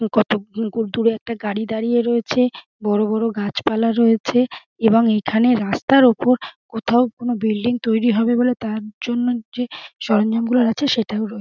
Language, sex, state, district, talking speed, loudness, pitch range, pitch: Bengali, female, West Bengal, Dakshin Dinajpur, 140 wpm, -19 LUFS, 220-240 Hz, 230 Hz